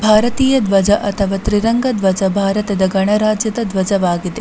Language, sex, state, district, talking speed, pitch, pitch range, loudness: Kannada, female, Karnataka, Dakshina Kannada, 120 wpm, 205 Hz, 195-215 Hz, -15 LUFS